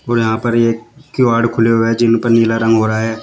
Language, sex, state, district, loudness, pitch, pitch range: Hindi, male, Uttar Pradesh, Shamli, -14 LUFS, 115 Hz, 115-120 Hz